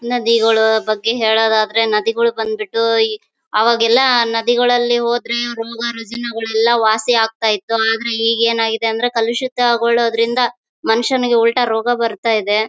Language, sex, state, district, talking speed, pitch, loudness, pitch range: Kannada, female, Karnataka, Bellary, 115 wpm, 230 Hz, -16 LUFS, 225-235 Hz